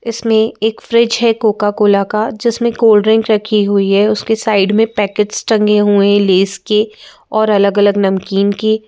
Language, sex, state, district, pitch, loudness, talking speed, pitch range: Hindi, female, Madhya Pradesh, Bhopal, 215 Hz, -13 LUFS, 190 wpm, 205-220 Hz